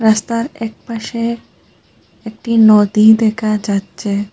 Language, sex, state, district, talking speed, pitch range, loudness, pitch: Bengali, female, Assam, Hailakandi, 95 wpm, 210-230 Hz, -14 LUFS, 220 Hz